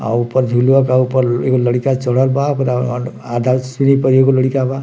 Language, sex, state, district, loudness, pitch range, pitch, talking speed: Bhojpuri, male, Bihar, Muzaffarpur, -15 LUFS, 125-135 Hz, 130 Hz, 200 wpm